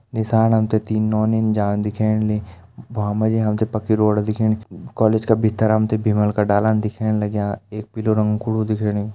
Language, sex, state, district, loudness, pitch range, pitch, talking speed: Hindi, male, Uttarakhand, Tehri Garhwal, -19 LUFS, 105-110 Hz, 110 Hz, 210 wpm